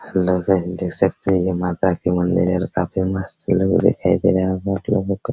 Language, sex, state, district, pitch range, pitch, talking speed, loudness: Hindi, male, Bihar, Araria, 90-95 Hz, 95 Hz, 225 wpm, -19 LUFS